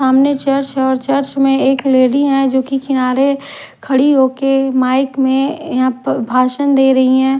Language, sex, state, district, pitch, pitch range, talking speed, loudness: Hindi, female, Odisha, Khordha, 270 Hz, 260-275 Hz, 185 wpm, -14 LUFS